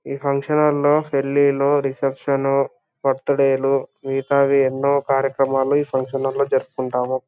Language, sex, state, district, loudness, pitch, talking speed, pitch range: Telugu, male, Andhra Pradesh, Anantapur, -19 LUFS, 135 Hz, 130 wpm, 135-140 Hz